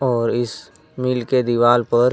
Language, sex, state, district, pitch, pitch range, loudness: Hindi, male, Jharkhand, Deoghar, 120 Hz, 120-125 Hz, -19 LUFS